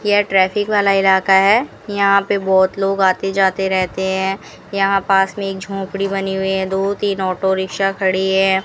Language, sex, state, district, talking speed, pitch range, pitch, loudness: Hindi, female, Rajasthan, Bikaner, 185 wpm, 190-195 Hz, 195 Hz, -16 LUFS